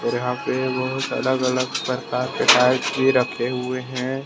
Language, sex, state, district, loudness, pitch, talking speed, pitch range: Hindi, male, Jharkhand, Deoghar, -21 LUFS, 130 Hz, 170 wpm, 125-130 Hz